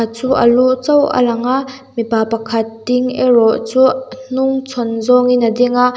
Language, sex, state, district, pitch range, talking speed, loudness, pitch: Mizo, female, Mizoram, Aizawl, 230-260 Hz, 190 wpm, -14 LUFS, 250 Hz